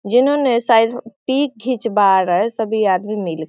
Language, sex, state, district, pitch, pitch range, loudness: Hindi, female, Bihar, Sitamarhi, 225 Hz, 200-245 Hz, -17 LUFS